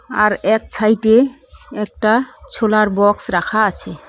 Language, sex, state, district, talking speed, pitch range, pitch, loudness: Bengali, female, West Bengal, Cooch Behar, 115 wpm, 210-230 Hz, 220 Hz, -15 LUFS